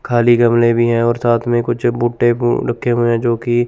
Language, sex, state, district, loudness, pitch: Hindi, male, Chandigarh, Chandigarh, -15 LUFS, 120 Hz